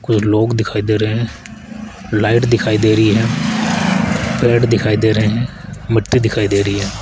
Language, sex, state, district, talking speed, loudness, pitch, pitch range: Hindi, male, Rajasthan, Jaipur, 180 wpm, -15 LUFS, 110 Hz, 105-120 Hz